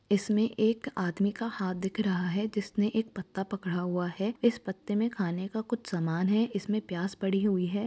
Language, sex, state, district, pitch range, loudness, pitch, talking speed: Hindi, male, Uttar Pradesh, Jyotiba Phule Nagar, 185-220 Hz, -31 LUFS, 200 Hz, 215 wpm